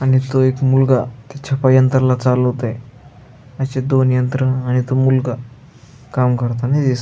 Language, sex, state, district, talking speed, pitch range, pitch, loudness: Marathi, male, Maharashtra, Aurangabad, 155 wpm, 125-130 Hz, 130 Hz, -16 LUFS